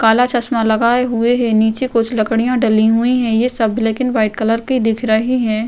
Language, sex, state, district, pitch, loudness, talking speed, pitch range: Hindi, female, Uttar Pradesh, Jyotiba Phule Nagar, 230 Hz, -15 LUFS, 220 wpm, 220-245 Hz